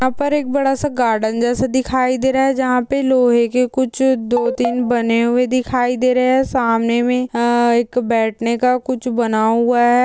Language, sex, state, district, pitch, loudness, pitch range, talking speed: Hindi, female, Chhattisgarh, Korba, 250 Hz, -16 LUFS, 235-260 Hz, 195 wpm